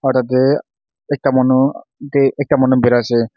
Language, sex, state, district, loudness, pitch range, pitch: Nagamese, male, Nagaland, Kohima, -15 LUFS, 130-140 Hz, 130 Hz